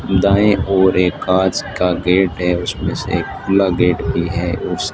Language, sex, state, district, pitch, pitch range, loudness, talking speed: Hindi, male, Rajasthan, Bikaner, 90 Hz, 90-95 Hz, -16 LUFS, 180 wpm